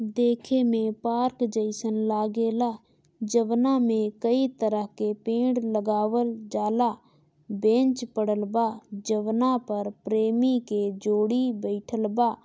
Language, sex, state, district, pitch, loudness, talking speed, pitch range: Bhojpuri, female, Bihar, Gopalganj, 225 Hz, -26 LUFS, 110 wpm, 215-240 Hz